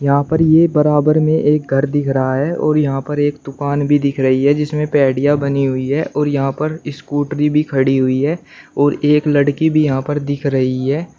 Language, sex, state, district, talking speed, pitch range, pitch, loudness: Hindi, male, Uttar Pradesh, Shamli, 220 wpm, 140-150 Hz, 145 Hz, -15 LUFS